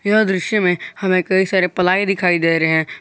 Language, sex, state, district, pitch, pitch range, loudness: Hindi, male, Jharkhand, Garhwa, 185 Hz, 180-195 Hz, -16 LUFS